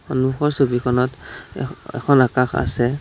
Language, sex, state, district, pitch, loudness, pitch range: Assamese, male, Assam, Sonitpur, 125 Hz, -20 LUFS, 125-135 Hz